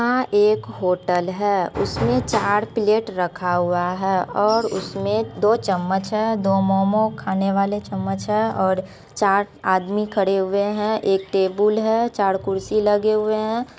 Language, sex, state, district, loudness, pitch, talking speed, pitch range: Maithili, female, Bihar, Supaul, -20 LUFS, 200 Hz, 150 wpm, 190-215 Hz